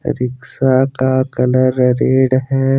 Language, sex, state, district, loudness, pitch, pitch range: Hindi, male, Jharkhand, Deoghar, -15 LUFS, 130 Hz, 125-130 Hz